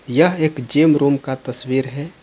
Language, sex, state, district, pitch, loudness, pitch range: Hindi, male, Jharkhand, Ranchi, 140 Hz, -18 LUFS, 130-155 Hz